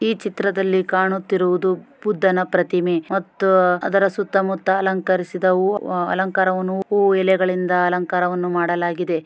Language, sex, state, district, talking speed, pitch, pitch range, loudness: Kannada, female, Karnataka, Shimoga, 95 wpm, 185 Hz, 180-195 Hz, -19 LUFS